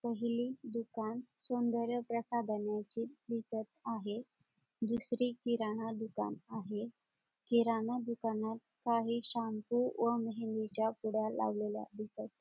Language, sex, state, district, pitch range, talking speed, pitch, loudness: Marathi, female, Maharashtra, Dhule, 220-235 Hz, 90 wpm, 230 Hz, -38 LUFS